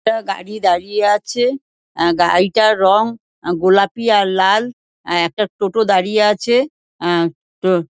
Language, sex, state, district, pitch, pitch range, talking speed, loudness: Bengali, female, West Bengal, Dakshin Dinajpur, 200 Hz, 180-220 Hz, 135 wpm, -16 LUFS